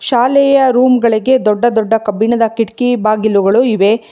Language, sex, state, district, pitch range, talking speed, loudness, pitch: Kannada, female, Karnataka, Bangalore, 215-250 Hz, 115 wpm, -12 LUFS, 230 Hz